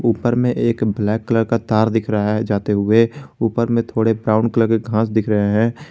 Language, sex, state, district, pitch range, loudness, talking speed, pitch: Hindi, male, Jharkhand, Garhwa, 110-115 Hz, -18 LUFS, 225 wpm, 115 Hz